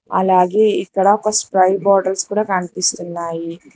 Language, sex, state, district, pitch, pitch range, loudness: Telugu, female, Telangana, Hyderabad, 190 Hz, 180-205 Hz, -16 LUFS